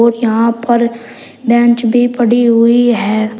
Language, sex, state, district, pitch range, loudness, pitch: Hindi, male, Uttar Pradesh, Shamli, 230-240 Hz, -11 LUFS, 235 Hz